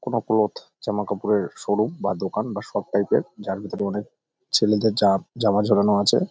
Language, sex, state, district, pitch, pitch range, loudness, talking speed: Bengali, male, West Bengal, North 24 Parganas, 105 Hz, 100-105 Hz, -23 LUFS, 190 wpm